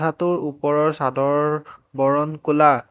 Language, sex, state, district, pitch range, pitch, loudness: Assamese, male, Assam, Hailakandi, 140-155 Hz, 150 Hz, -20 LUFS